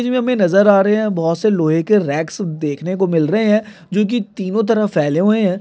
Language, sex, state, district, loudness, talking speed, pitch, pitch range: Hindi, male, Bihar, Sitamarhi, -16 LUFS, 245 wpm, 200 Hz, 165-215 Hz